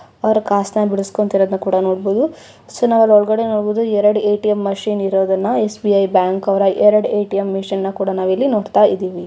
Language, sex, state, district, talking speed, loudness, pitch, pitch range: Kannada, female, Karnataka, Mysore, 160 wpm, -16 LUFS, 200 Hz, 195-210 Hz